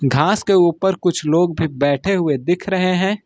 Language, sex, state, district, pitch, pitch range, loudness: Hindi, male, Uttar Pradesh, Lucknow, 175 Hz, 155-190 Hz, -17 LUFS